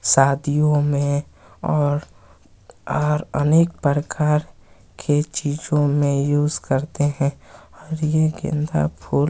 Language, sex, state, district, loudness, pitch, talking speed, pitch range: Hindi, male, Chhattisgarh, Kabirdham, -20 LUFS, 145 Hz, 95 wpm, 140-150 Hz